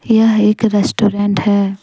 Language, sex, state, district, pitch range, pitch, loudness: Hindi, female, Jharkhand, Deoghar, 200-215 Hz, 205 Hz, -13 LUFS